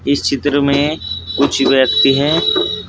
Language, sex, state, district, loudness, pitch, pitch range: Hindi, male, Uttar Pradesh, Saharanpur, -14 LUFS, 135 Hz, 90-140 Hz